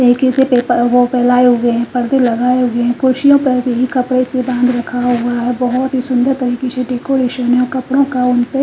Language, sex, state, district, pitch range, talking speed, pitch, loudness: Hindi, female, Punjab, Fazilka, 245-255 Hz, 195 wpm, 250 Hz, -13 LUFS